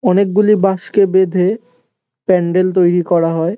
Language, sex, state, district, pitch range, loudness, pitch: Bengali, male, West Bengal, North 24 Parganas, 180-205 Hz, -14 LUFS, 190 Hz